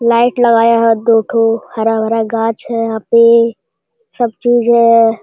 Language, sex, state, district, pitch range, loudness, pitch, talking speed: Hindi, male, Bihar, Jamui, 225-235 Hz, -12 LUFS, 230 Hz, 150 wpm